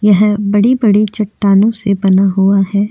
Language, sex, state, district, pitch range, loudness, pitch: Hindi, female, Uttar Pradesh, Jyotiba Phule Nagar, 195-210 Hz, -12 LUFS, 205 Hz